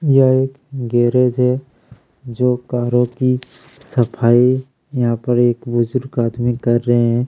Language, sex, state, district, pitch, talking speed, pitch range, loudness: Hindi, male, Chhattisgarh, Kabirdham, 125 Hz, 140 wpm, 120-130 Hz, -17 LUFS